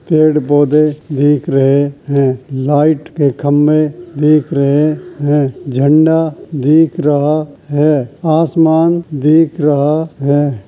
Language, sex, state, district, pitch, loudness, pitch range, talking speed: Hindi, male, Uttar Pradesh, Hamirpur, 150 Hz, -12 LUFS, 140-155 Hz, 105 wpm